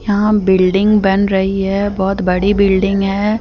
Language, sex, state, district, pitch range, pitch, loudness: Hindi, female, Jharkhand, Deoghar, 195-205 Hz, 195 Hz, -14 LUFS